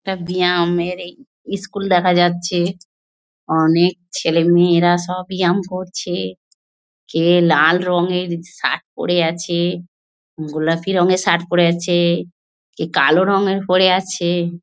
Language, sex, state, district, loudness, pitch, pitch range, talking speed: Bengali, female, West Bengal, North 24 Parganas, -17 LUFS, 175 Hz, 170-185 Hz, 110 wpm